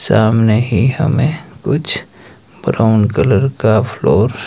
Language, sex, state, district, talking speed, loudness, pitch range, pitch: Hindi, male, Himachal Pradesh, Shimla, 120 wpm, -14 LUFS, 110-130 Hz, 115 Hz